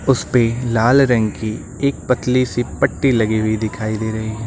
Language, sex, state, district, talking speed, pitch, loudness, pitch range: Hindi, male, Uttar Pradesh, Lucknow, 190 wpm, 115 Hz, -18 LUFS, 110-125 Hz